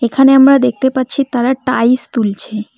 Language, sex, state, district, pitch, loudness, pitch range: Bengali, female, West Bengal, Cooch Behar, 255 Hz, -12 LUFS, 235-265 Hz